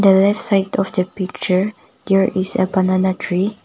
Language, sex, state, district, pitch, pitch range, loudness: English, female, Nagaland, Kohima, 190 Hz, 185-200 Hz, -18 LUFS